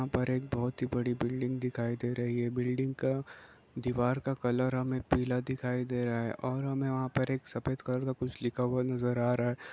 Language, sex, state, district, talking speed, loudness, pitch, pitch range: Hindi, male, Chhattisgarh, Raigarh, 220 wpm, -33 LUFS, 125 Hz, 120-130 Hz